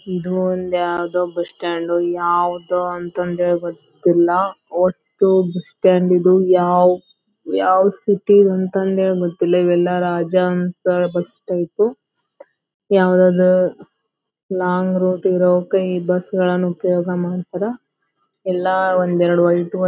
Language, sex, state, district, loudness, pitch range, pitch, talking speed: Kannada, female, Karnataka, Belgaum, -17 LUFS, 175-185 Hz, 180 Hz, 110 wpm